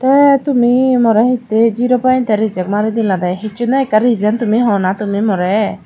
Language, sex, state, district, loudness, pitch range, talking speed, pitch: Chakma, female, Tripura, Dhalai, -13 LUFS, 210-250 Hz, 185 wpm, 225 Hz